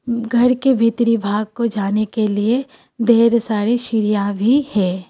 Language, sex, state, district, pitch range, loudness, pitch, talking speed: Hindi, female, Assam, Kamrup Metropolitan, 210-240 Hz, -17 LUFS, 230 Hz, 155 wpm